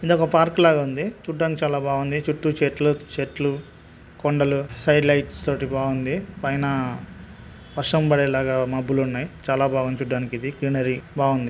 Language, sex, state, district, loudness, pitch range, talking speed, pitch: Telugu, male, Andhra Pradesh, Guntur, -22 LUFS, 130-150 Hz, 135 wpm, 140 Hz